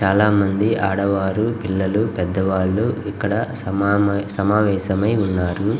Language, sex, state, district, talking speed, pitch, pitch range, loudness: Telugu, male, Andhra Pradesh, Guntur, 85 wpm, 100 Hz, 95-105 Hz, -19 LUFS